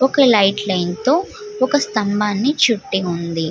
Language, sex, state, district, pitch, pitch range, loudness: Telugu, female, Andhra Pradesh, Guntur, 215 Hz, 190-275 Hz, -17 LUFS